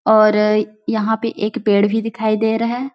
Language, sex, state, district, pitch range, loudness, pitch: Hindi, female, Chhattisgarh, Bilaspur, 215-225 Hz, -17 LUFS, 220 Hz